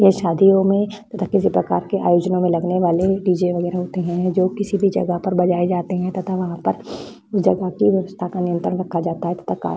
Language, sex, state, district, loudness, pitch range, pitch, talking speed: Hindi, female, Bihar, Vaishali, -19 LUFS, 175-195 Hz, 180 Hz, 240 wpm